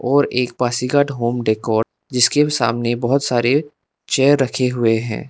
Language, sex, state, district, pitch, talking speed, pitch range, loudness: Hindi, male, Arunachal Pradesh, Lower Dibang Valley, 125 Hz, 145 wpm, 120-140 Hz, -18 LUFS